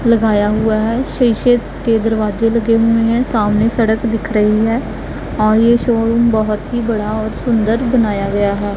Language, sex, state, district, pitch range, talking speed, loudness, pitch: Hindi, female, Punjab, Pathankot, 215-235 Hz, 170 wpm, -15 LUFS, 225 Hz